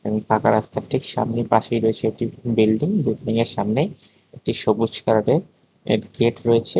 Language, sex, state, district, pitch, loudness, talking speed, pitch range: Bengali, male, Tripura, West Tripura, 115 Hz, -21 LUFS, 130 wpm, 110-120 Hz